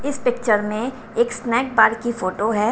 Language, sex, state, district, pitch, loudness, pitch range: Hindi, female, Himachal Pradesh, Shimla, 235 Hz, -20 LUFS, 215-245 Hz